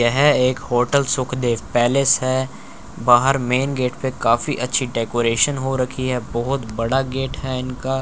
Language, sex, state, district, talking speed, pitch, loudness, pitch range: Hindi, male, Chandigarh, Chandigarh, 155 wpm, 130 Hz, -19 LUFS, 120-135 Hz